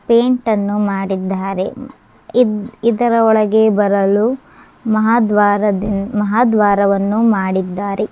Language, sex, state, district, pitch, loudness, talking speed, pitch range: Kannada, male, Karnataka, Dharwad, 210 Hz, -15 LUFS, 65 wpm, 200-225 Hz